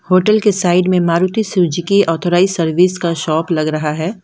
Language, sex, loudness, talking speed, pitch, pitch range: Hindi, female, -14 LUFS, 185 wpm, 175 Hz, 165-185 Hz